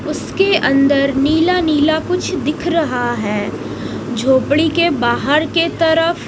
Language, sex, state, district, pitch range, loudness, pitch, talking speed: Hindi, female, Odisha, Nuapada, 275-335 Hz, -15 LUFS, 300 Hz, 125 wpm